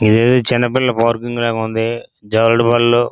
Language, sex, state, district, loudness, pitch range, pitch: Telugu, male, Andhra Pradesh, Srikakulam, -15 LUFS, 115-120 Hz, 115 Hz